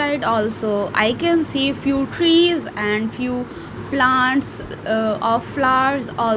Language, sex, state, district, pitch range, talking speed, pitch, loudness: English, female, Punjab, Fazilka, 220-275 Hz, 120 wpm, 255 Hz, -18 LUFS